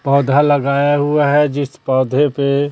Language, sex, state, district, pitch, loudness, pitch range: Hindi, female, Chhattisgarh, Raipur, 145 Hz, -15 LUFS, 140-145 Hz